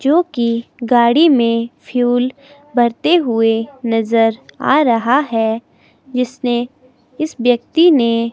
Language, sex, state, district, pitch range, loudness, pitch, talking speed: Hindi, female, Himachal Pradesh, Shimla, 230-275 Hz, -15 LUFS, 245 Hz, 110 wpm